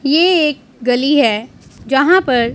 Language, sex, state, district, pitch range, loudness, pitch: Hindi, female, Punjab, Pathankot, 245-300 Hz, -14 LUFS, 270 Hz